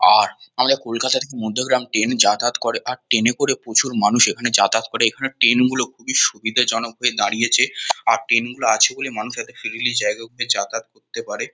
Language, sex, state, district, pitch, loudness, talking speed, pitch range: Bengali, male, West Bengal, Kolkata, 120 Hz, -18 LUFS, 195 wpm, 115-130 Hz